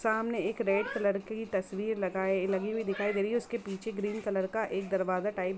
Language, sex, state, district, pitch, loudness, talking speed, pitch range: Hindi, female, Jharkhand, Jamtara, 200 Hz, -32 LUFS, 245 wpm, 195-220 Hz